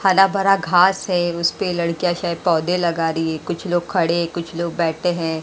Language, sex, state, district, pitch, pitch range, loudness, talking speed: Hindi, female, Maharashtra, Mumbai Suburban, 170 Hz, 165-180 Hz, -19 LUFS, 210 wpm